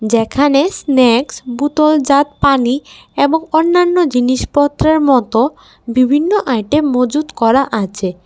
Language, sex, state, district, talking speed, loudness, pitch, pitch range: Bengali, female, Tripura, West Tripura, 95 wpm, -13 LUFS, 275 Hz, 245-300 Hz